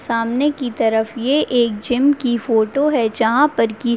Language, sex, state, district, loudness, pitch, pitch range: Hindi, female, Bihar, Madhepura, -17 LUFS, 240 Hz, 225-275 Hz